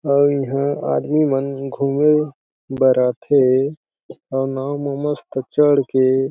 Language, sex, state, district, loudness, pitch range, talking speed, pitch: Chhattisgarhi, male, Chhattisgarh, Jashpur, -18 LUFS, 135-145 Hz, 135 wpm, 140 Hz